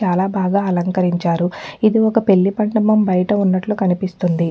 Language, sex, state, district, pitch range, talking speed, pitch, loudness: Telugu, female, Telangana, Nalgonda, 180-210 Hz, 105 wpm, 190 Hz, -17 LUFS